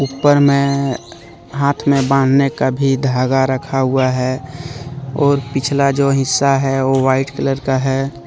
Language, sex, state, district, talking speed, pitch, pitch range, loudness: Hindi, male, Jharkhand, Deoghar, 150 wpm, 135 Hz, 135-140 Hz, -15 LUFS